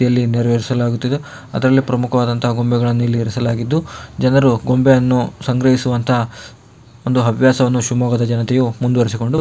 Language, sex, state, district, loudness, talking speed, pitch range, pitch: Kannada, male, Karnataka, Shimoga, -16 LUFS, 95 wpm, 120-130 Hz, 125 Hz